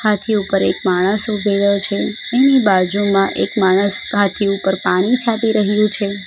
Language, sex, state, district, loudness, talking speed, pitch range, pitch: Gujarati, female, Gujarat, Valsad, -16 LUFS, 155 wpm, 195-215 Hz, 200 Hz